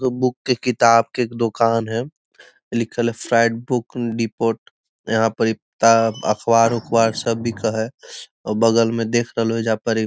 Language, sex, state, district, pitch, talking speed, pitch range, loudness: Magahi, male, Bihar, Gaya, 115 Hz, 180 wpm, 115-120 Hz, -19 LUFS